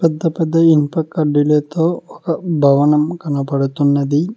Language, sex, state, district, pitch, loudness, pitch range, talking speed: Telugu, male, Telangana, Mahabubabad, 155 Hz, -16 LUFS, 145-165 Hz, 95 wpm